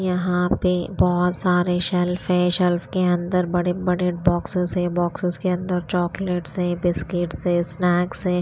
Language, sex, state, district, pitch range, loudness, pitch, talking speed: Hindi, female, Haryana, Rohtak, 175-180 Hz, -22 LUFS, 180 Hz, 155 wpm